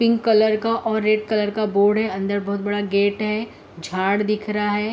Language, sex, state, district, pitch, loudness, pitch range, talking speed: Hindi, female, Uttar Pradesh, Etah, 210 Hz, -21 LUFS, 205-220 Hz, 220 wpm